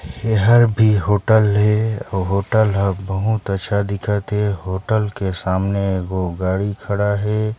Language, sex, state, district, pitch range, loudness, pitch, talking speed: Chhattisgarhi, male, Chhattisgarh, Sarguja, 95-110 Hz, -18 LUFS, 100 Hz, 150 wpm